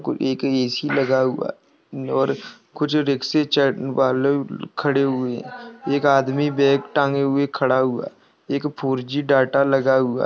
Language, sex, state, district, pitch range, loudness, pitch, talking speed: Hindi, male, Uttar Pradesh, Budaun, 130-140 Hz, -20 LUFS, 140 Hz, 140 wpm